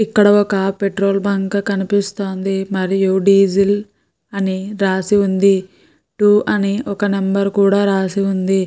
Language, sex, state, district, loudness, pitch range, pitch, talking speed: Telugu, female, Andhra Pradesh, Guntur, -16 LUFS, 195-200 Hz, 195 Hz, 120 wpm